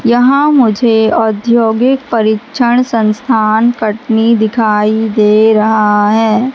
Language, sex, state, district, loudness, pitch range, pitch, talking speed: Hindi, female, Madhya Pradesh, Katni, -10 LUFS, 215-240 Hz, 225 Hz, 90 wpm